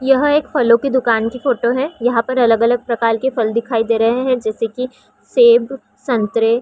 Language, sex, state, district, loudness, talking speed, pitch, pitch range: Hindi, female, Chhattisgarh, Raigarh, -16 LUFS, 190 wpm, 240 Hz, 230-260 Hz